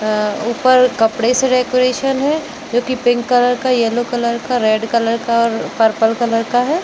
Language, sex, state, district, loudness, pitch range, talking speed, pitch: Hindi, female, Jharkhand, Jamtara, -15 LUFS, 230-255 Hz, 185 wpm, 240 Hz